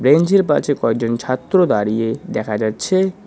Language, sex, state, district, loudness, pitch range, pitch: Bengali, male, West Bengal, Cooch Behar, -17 LUFS, 110-185 Hz, 125 Hz